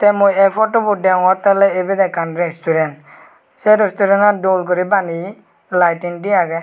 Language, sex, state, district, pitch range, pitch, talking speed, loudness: Chakma, male, Tripura, West Tripura, 170-200 Hz, 190 Hz, 145 wpm, -15 LUFS